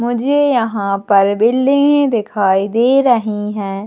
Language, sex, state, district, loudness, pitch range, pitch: Hindi, female, Chhattisgarh, Jashpur, -14 LUFS, 200-255 Hz, 225 Hz